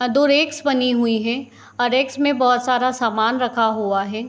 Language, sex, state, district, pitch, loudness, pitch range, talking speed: Hindi, female, Bihar, Darbhanga, 245 Hz, -19 LUFS, 230-265 Hz, 210 wpm